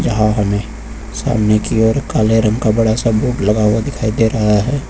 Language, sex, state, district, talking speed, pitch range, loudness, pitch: Hindi, male, Uttar Pradesh, Lucknow, 210 wpm, 105-115 Hz, -15 LUFS, 110 Hz